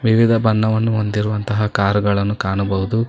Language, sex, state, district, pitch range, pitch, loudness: Kannada, male, Karnataka, Bangalore, 100-110 Hz, 105 Hz, -18 LUFS